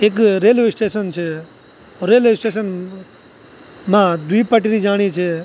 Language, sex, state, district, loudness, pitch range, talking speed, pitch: Garhwali, male, Uttarakhand, Tehri Garhwal, -16 LUFS, 180-220 Hz, 120 wpm, 205 Hz